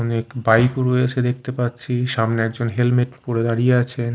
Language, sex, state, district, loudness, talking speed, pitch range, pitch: Bengali, male, Odisha, Khordha, -20 LUFS, 175 wpm, 115-125 Hz, 120 Hz